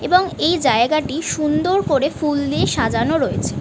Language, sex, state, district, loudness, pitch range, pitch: Bengali, female, West Bengal, North 24 Parganas, -18 LUFS, 285-345 Hz, 305 Hz